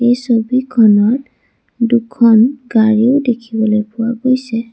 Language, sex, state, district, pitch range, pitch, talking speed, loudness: Assamese, female, Assam, Sonitpur, 225-250 Hz, 235 Hz, 90 wpm, -13 LUFS